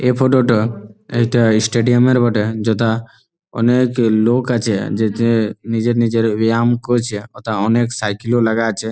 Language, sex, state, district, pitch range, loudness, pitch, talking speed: Bengali, male, West Bengal, Malda, 110-120 Hz, -16 LUFS, 115 Hz, 170 wpm